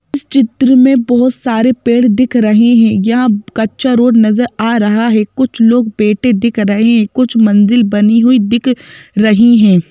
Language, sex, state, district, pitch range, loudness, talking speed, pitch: Hindi, female, Madhya Pradesh, Bhopal, 215-245 Hz, -10 LUFS, 175 wpm, 230 Hz